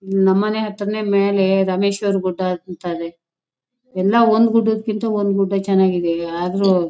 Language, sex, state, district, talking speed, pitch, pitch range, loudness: Kannada, female, Karnataka, Shimoga, 130 wpm, 195 Hz, 180-210 Hz, -18 LUFS